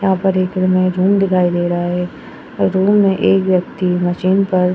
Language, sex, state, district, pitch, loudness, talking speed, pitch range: Hindi, female, Uttar Pradesh, Etah, 185 Hz, -15 LUFS, 190 wpm, 180-190 Hz